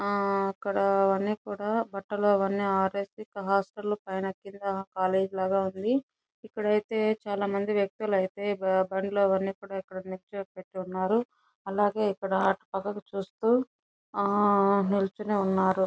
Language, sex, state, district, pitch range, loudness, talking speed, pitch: Telugu, female, Andhra Pradesh, Chittoor, 195-205 Hz, -28 LUFS, 105 wpm, 200 Hz